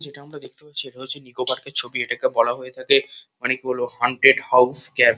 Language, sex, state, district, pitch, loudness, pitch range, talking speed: Bengali, male, West Bengal, Kolkata, 130 Hz, -18 LUFS, 125-150 Hz, 220 wpm